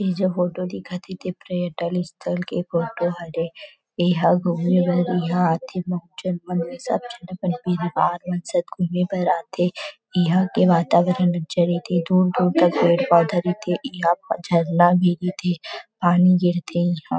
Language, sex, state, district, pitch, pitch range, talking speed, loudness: Chhattisgarhi, female, Chhattisgarh, Rajnandgaon, 180 Hz, 175-180 Hz, 160 wpm, -21 LUFS